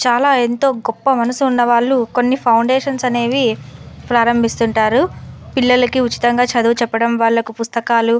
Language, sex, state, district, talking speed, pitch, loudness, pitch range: Telugu, female, Andhra Pradesh, Anantapur, 115 wpm, 240 Hz, -15 LUFS, 230-255 Hz